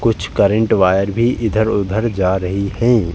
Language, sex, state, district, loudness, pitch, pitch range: Hindi, male, Uttar Pradesh, Jalaun, -16 LUFS, 105 Hz, 95-115 Hz